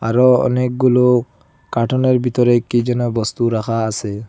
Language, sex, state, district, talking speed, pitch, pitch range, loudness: Bengali, male, Assam, Hailakandi, 125 wpm, 120 Hz, 115-125 Hz, -16 LUFS